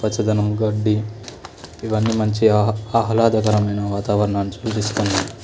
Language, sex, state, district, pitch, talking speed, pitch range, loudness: Telugu, male, Telangana, Nalgonda, 110 Hz, 100 wpm, 105-110 Hz, -19 LUFS